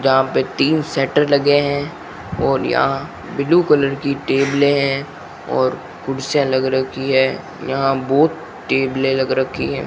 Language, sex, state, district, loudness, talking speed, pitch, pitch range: Hindi, male, Rajasthan, Bikaner, -18 LUFS, 145 wpm, 135 Hz, 135-145 Hz